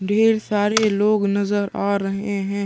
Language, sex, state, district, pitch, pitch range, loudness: Hindi, male, Chhattisgarh, Sukma, 205 Hz, 200-210 Hz, -20 LUFS